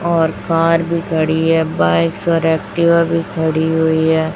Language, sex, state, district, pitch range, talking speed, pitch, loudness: Hindi, female, Chhattisgarh, Raipur, 160-165 Hz, 165 wpm, 160 Hz, -15 LUFS